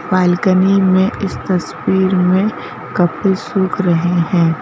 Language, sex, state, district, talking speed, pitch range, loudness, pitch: Hindi, female, Madhya Pradesh, Bhopal, 115 wpm, 175-190 Hz, -15 LUFS, 185 Hz